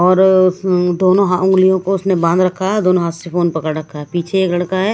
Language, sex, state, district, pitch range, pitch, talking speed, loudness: Hindi, female, Punjab, Kapurthala, 175-190 Hz, 185 Hz, 255 wpm, -15 LUFS